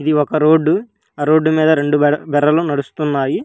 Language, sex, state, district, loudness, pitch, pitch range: Telugu, female, Telangana, Hyderabad, -15 LUFS, 150 Hz, 145-155 Hz